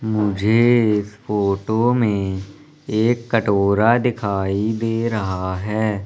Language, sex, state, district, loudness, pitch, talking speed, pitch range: Hindi, male, Madhya Pradesh, Umaria, -19 LUFS, 110 Hz, 100 wpm, 100-115 Hz